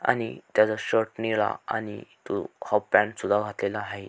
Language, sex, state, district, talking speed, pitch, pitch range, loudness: Marathi, male, Maharashtra, Sindhudurg, 160 wpm, 105 Hz, 105-110 Hz, -26 LUFS